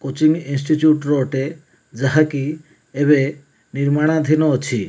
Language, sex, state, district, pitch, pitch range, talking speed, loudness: Odia, male, Odisha, Malkangiri, 145 Hz, 135-155 Hz, 110 wpm, -18 LUFS